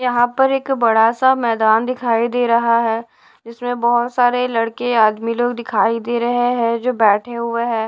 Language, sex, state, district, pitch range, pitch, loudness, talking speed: Hindi, female, Odisha, Sambalpur, 230-245 Hz, 235 Hz, -17 LUFS, 185 wpm